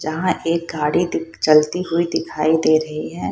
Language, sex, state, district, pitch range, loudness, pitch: Hindi, female, Bihar, Purnia, 155-165 Hz, -19 LUFS, 155 Hz